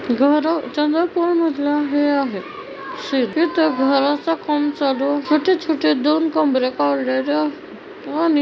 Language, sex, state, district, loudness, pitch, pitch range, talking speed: Marathi, female, Maharashtra, Chandrapur, -19 LUFS, 295 Hz, 275-320 Hz, 70 wpm